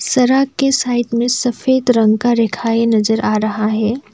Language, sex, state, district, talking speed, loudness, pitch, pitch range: Hindi, female, Assam, Kamrup Metropolitan, 175 wpm, -15 LUFS, 235 Hz, 220-250 Hz